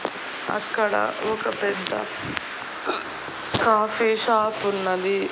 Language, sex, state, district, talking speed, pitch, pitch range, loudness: Telugu, female, Andhra Pradesh, Annamaya, 70 wpm, 215 Hz, 195-220 Hz, -24 LUFS